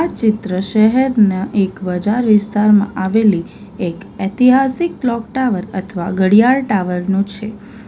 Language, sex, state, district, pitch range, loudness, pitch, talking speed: Gujarati, female, Gujarat, Valsad, 190-235 Hz, -15 LUFS, 210 Hz, 115 wpm